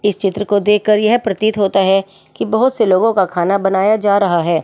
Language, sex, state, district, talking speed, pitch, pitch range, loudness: Hindi, female, Delhi, New Delhi, 230 wpm, 200 Hz, 190-210 Hz, -14 LUFS